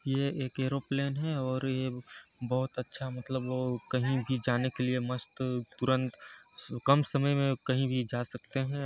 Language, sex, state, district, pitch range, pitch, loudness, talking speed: Hindi, male, Chhattisgarh, Sarguja, 125-135 Hz, 130 Hz, -32 LUFS, 160 wpm